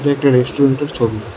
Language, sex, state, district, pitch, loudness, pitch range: Bengali, male, Tripura, West Tripura, 135 Hz, -15 LUFS, 115-140 Hz